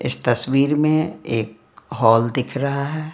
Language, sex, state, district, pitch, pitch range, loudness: Hindi, female, Bihar, Patna, 135 Hz, 115-150 Hz, -19 LUFS